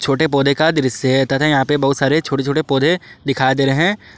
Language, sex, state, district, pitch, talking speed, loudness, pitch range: Hindi, male, Jharkhand, Palamu, 140 Hz, 245 wpm, -16 LUFS, 135-155 Hz